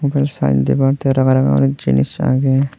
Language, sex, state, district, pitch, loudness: Chakma, male, Tripura, Unakoti, 130 Hz, -15 LUFS